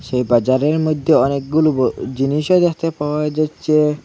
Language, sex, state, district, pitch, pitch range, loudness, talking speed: Bengali, male, Assam, Hailakandi, 150 Hz, 135-155 Hz, -17 LUFS, 135 wpm